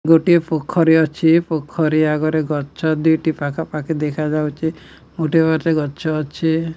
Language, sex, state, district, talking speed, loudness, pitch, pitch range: Odia, male, Odisha, Nuapada, 125 wpm, -18 LUFS, 160 Hz, 155-160 Hz